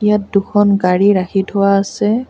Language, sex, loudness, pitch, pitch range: Assamese, female, -14 LUFS, 200 Hz, 195-205 Hz